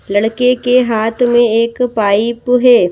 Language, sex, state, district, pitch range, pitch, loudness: Hindi, female, Madhya Pradesh, Bhopal, 220-250 Hz, 235 Hz, -12 LUFS